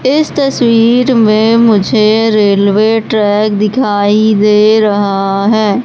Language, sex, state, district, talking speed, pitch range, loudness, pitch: Hindi, female, Madhya Pradesh, Katni, 105 wpm, 210-230 Hz, -9 LUFS, 215 Hz